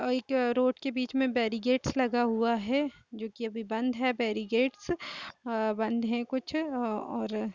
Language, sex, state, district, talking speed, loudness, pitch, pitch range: Hindi, female, Chhattisgarh, Kabirdham, 150 wpm, -30 LUFS, 240 Hz, 225-255 Hz